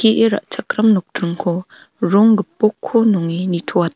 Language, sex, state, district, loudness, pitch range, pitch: Garo, female, Meghalaya, North Garo Hills, -17 LUFS, 175-220 Hz, 200 Hz